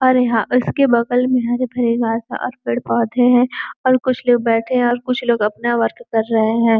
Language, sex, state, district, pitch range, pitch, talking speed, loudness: Hindi, female, Uttar Pradesh, Gorakhpur, 230-250 Hz, 240 Hz, 205 wpm, -17 LUFS